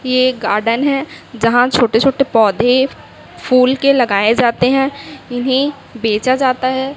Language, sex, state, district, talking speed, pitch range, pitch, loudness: Hindi, female, Chhattisgarh, Raipur, 145 wpm, 235-270 Hz, 255 Hz, -14 LUFS